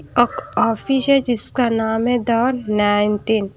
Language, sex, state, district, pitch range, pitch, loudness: Hindi, female, Punjab, Kapurthala, 215-250 Hz, 235 Hz, -18 LUFS